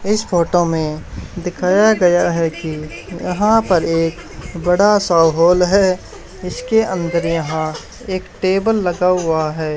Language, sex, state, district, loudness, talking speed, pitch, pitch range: Hindi, male, Haryana, Charkhi Dadri, -16 LUFS, 135 wpm, 175 Hz, 165-190 Hz